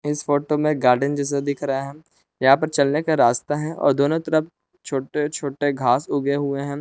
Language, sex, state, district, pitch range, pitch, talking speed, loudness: Hindi, male, Jharkhand, Palamu, 140-150 Hz, 145 Hz, 200 wpm, -21 LUFS